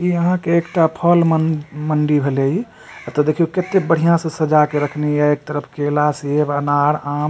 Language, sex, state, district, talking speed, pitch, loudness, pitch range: Maithili, male, Bihar, Supaul, 195 wpm, 150 Hz, -17 LUFS, 145-170 Hz